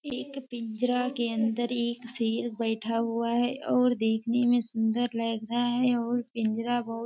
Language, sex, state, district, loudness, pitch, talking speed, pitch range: Hindi, female, Bihar, Kishanganj, -28 LUFS, 235 Hz, 170 wpm, 230-245 Hz